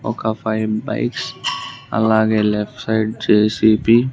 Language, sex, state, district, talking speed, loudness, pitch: Telugu, male, Andhra Pradesh, Sri Satya Sai, 115 wpm, -18 LUFS, 110 Hz